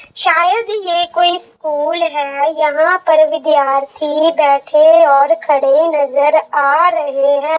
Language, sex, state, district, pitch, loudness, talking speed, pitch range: Hindi, female, Jharkhand, Sahebganj, 310 Hz, -13 LUFS, 120 wpm, 285-330 Hz